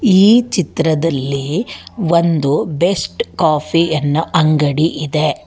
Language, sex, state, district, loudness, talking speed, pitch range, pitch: Kannada, female, Karnataka, Bangalore, -15 LUFS, 90 wpm, 150-175 Hz, 160 Hz